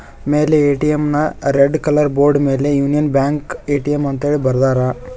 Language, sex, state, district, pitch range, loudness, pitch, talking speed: Kannada, male, Karnataka, Koppal, 140-150 Hz, -15 LUFS, 145 Hz, 150 wpm